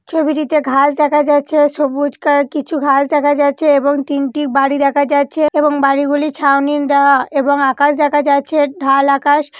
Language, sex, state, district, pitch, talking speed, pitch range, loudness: Bengali, female, West Bengal, Purulia, 285 Hz, 160 wpm, 280-295 Hz, -13 LUFS